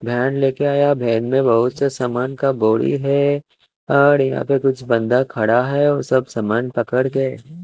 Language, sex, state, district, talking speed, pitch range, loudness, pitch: Hindi, male, Chandigarh, Chandigarh, 190 wpm, 120-140 Hz, -18 LUFS, 130 Hz